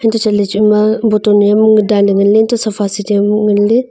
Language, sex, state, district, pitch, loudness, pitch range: Wancho, female, Arunachal Pradesh, Longding, 210 Hz, -11 LUFS, 205-220 Hz